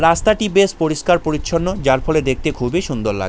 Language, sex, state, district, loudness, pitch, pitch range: Bengali, male, West Bengal, Jalpaiguri, -17 LUFS, 160 Hz, 130-180 Hz